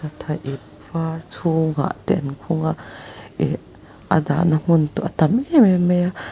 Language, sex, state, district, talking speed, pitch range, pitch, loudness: Mizo, male, Mizoram, Aizawl, 150 wpm, 150-175 Hz, 160 Hz, -20 LUFS